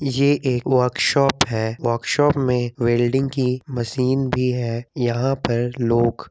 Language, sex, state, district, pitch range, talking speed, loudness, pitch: Hindi, male, Jharkhand, Jamtara, 120-135 Hz, 135 wpm, -20 LUFS, 125 Hz